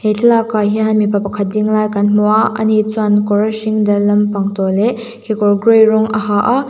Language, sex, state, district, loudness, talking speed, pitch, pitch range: Mizo, female, Mizoram, Aizawl, -13 LUFS, 225 wpm, 215 Hz, 205-220 Hz